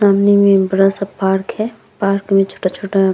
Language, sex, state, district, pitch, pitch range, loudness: Hindi, female, Bihar, Vaishali, 195 Hz, 195-200 Hz, -15 LUFS